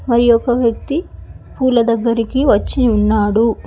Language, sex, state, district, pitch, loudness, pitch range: Telugu, female, Telangana, Hyderabad, 235 Hz, -15 LUFS, 230-255 Hz